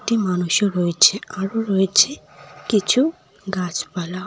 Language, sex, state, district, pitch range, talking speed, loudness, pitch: Bengali, female, West Bengal, Cooch Behar, 180-215 Hz, 100 wpm, -19 LUFS, 195 Hz